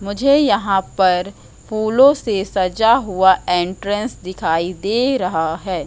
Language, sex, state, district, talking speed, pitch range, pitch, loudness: Hindi, female, Madhya Pradesh, Katni, 125 wpm, 185-225 Hz, 195 Hz, -17 LUFS